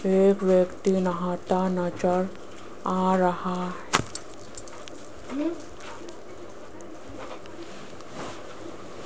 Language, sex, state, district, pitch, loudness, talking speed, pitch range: Hindi, female, Rajasthan, Jaipur, 185 Hz, -26 LUFS, 45 wpm, 180-190 Hz